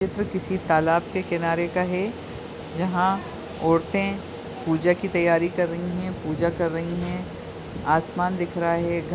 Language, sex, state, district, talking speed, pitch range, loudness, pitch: Hindi, female, Chhattisgarh, Bilaspur, 150 wpm, 170-185 Hz, -24 LUFS, 175 Hz